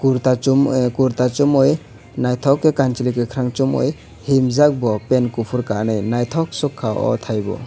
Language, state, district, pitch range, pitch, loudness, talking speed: Kokborok, Tripura, West Tripura, 115-135 Hz, 125 Hz, -18 LUFS, 115 wpm